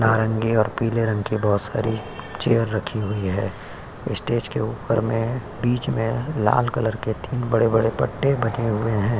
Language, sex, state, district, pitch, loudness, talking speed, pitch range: Hindi, male, Uttar Pradesh, Hamirpur, 110 Hz, -23 LUFS, 170 wpm, 110-115 Hz